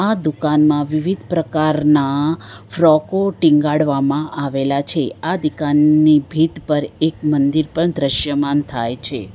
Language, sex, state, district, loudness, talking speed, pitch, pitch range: Gujarati, female, Gujarat, Valsad, -17 LUFS, 115 wpm, 150 Hz, 145-160 Hz